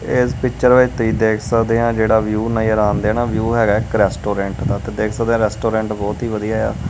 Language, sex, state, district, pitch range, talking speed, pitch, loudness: Punjabi, male, Punjab, Kapurthala, 105-115 Hz, 210 wpm, 110 Hz, -17 LUFS